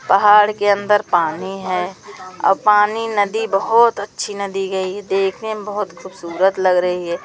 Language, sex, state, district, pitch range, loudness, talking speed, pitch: Hindi, female, Madhya Pradesh, Umaria, 185-210 Hz, -17 LUFS, 155 wpm, 195 Hz